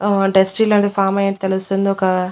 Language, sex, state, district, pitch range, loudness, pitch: Telugu, female, Andhra Pradesh, Annamaya, 190-200 Hz, -16 LUFS, 195 Hz